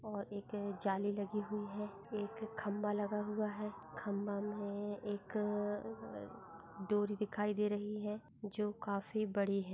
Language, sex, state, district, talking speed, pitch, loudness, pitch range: Hindi, male, Bihar, Darbhanga, 140 wpm, 205 Hz, -40 LUFS, 200-210 Hz